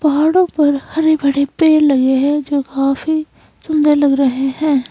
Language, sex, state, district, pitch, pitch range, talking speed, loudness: Hindi, female, Himachal Pradesh, Shimla, 290 Hz, 275-310 Hz, 160 wpm, -14 LUFS